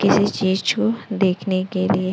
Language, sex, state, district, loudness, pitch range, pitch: Hindi, male, Chhattisgarh, Raipur, -20 LUFS, 185-200 Hz, 190 Hz